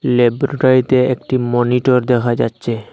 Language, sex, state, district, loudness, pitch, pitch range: Bengali, male, Assam, Hailakandi, -15 LUFS, 125 Hz, 120-130 Hz